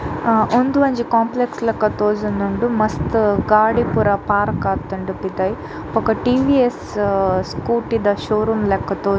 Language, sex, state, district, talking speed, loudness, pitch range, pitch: Tulu, female, Karnataka, Dakshina Kannada, 130 wpm, -18 LUFS, 205-235 Hz, 215 Hz